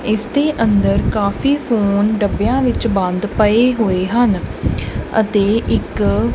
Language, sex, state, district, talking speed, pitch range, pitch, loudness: Punjabi, male, Punjab, Kapurthala, 125 wpm, 205-240 Hz, 215 Hz, -16 LUFS